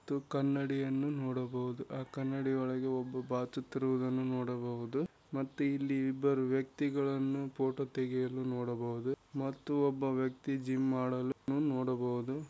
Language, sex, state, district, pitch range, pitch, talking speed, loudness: Kannada, male, Karnataka, Raichur, 130-140 Hz, 135 Hz, 100 wpm, -36 LUFS